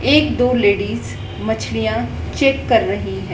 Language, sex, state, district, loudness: Hindi, female, Madhya Pradesh, Dhar, -18 LUFS